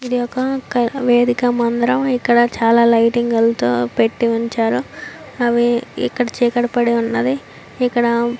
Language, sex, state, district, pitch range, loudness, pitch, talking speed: Telugu, female, Andhra Pradesh, Visakhapatnam, 230-245 Hz, -17 LUFS, 240 Hz, 105 wpm